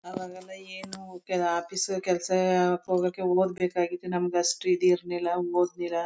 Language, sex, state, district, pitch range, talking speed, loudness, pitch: Kannada, female, Karnataka, Mysore, 175-185 Hz, 100 wpm, -27 LUFS, 180 Hz